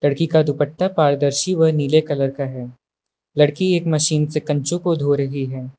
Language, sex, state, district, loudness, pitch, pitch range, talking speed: Hindi, male, Uttar Pradesh, Lucknow, -19 LUFS, 145 Hz, 140-160 Hz, 185 wpm